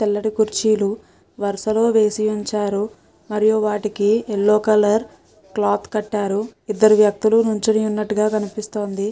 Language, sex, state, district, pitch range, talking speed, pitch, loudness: Telugu, female, Telangana, Nalgonda, 210-215 Hz, 110 wpm, 210 Hz, -19 LUFS